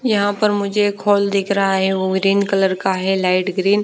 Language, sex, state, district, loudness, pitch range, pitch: Hindi, female, Bihar, Patna, -17 LUFS, 190-205 Hz, 195 Hz